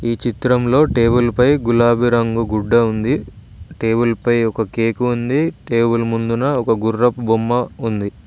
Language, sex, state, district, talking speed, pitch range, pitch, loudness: Telugu, male, Telangana, Mahabubabad, 140 wpm, 115-120 Hz, 115 Hz, -17 LUFS